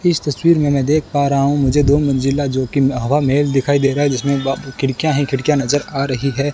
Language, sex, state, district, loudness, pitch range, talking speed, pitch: Hindi, male, Rajasthan, Bikaner, -16 LUFS, 135-145 Hz, 250 wpm, 140 Hz